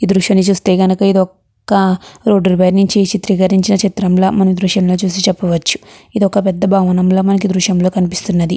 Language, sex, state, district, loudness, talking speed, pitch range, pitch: Telugu, female, Andhra Pradesh, Guntur, -13 LUFS, 180 wpm, 185-195 Hz, 190 Hz